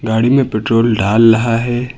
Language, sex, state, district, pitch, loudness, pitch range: Hindi, male, Uttar Pradesh, Lucknow, 115 Hz, -13 LUFS, 110-120 Hz